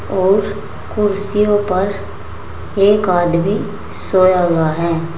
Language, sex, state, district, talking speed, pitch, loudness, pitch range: Hindi, female, Uttar Pradesh, Saharanpur, 90 wpm, 185 Hz, -15 LUFS, 165-200 Hz